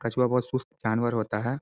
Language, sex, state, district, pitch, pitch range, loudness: Hindi, male, Jharkhand, Sahebganj, 120 Hz, 115-125 Hz, -27 LUFS